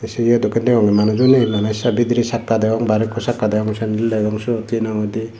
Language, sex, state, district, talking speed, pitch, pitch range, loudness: Chakma, male, Tripura, Dhalai, 190 wpm, 110 Hz, 110-115 Hz, -17 LUFS